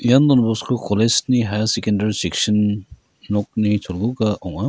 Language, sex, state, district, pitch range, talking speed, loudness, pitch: Garo, male, Meghalaya, West Garo Hills, 105-115 Hz, 130 wpm, -19 LUFS, 105 Hz